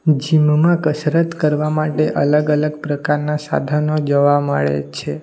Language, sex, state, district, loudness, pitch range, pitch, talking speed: Gujarati, male, Gujarat, Valsad, -17 LUFS, 145-155 Hz, 150 Hz, 140 wpm